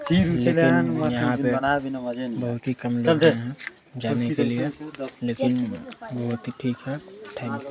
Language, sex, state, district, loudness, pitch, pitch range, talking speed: Hindi, male, Chhattisgarh, Sarguja, -24 LUFS, 125 Hz, 120-145 Hz, 125 wpm